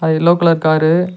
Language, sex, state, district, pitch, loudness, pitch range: Tamil, male, Tamil Nadu, Nilgiris, 165 Hz, -13 LUFS, 160-170 Hz